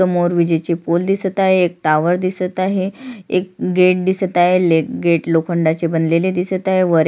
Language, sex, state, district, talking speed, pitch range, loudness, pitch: Marathi, female, Maharashtra, Sindhudurg, 160 wpm, 170-185 Hz, -16 LUFS, 180 Hz